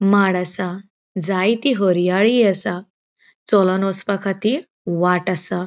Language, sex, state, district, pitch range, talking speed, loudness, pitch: Konkani, female, Goa, North and South Goa, 180-205 Hz, 95 wpm, -18 LUFS, 195 Hz